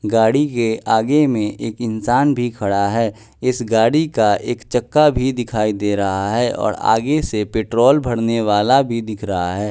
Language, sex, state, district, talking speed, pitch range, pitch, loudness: Hindi, male, Bihar, West Champaran, 180 wpm, 105-125 Hz, 115 Hz, -17 LUFS